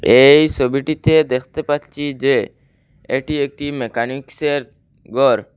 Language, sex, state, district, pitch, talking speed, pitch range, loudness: Bengali, male, Assam, Hailakandi, 140 Hz, 120 wpm, 130-145 Hz, -17 LUFS